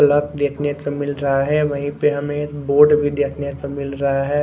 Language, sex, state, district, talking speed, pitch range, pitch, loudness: Hindi, male, Odisha, Khordha, 215 wpm, 140-145 Hz, 145 Hz, -19 LUFS